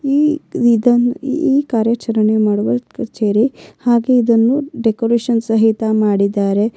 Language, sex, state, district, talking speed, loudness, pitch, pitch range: Kannada, female, Karnataka, Bellary, 95 wpm, -15 LUFS, 230 Hz, 215-245 Hz